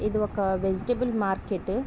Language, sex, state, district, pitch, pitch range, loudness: Telugu, female, Andhra Pradesh, Visakhapatnam, 200 Hz, 190-220 Hz, -27 LUFS